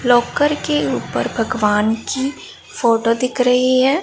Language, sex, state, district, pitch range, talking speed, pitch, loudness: Hindi, female, Punjab, Pathankot, 230-270 Hz, 135 wpm, 250 Hz, -17 LUFS